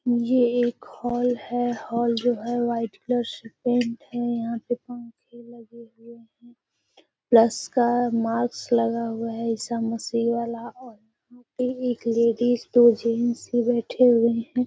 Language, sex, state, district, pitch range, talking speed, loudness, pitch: Hindi, female, Bihar, Gaya, 230-245 Hz, 155 wpm, -23 LUFS, 235 Hz